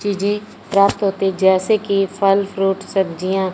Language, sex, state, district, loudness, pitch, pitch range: Hindi, male, Punjab, Fazilka, -18 LUFS, 195 Hz, 190-200 Hz